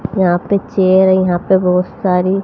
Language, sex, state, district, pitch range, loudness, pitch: Hindi, female, Haryana, Rohtak, 180-190 Hz, -13 LUFS, 185 Hz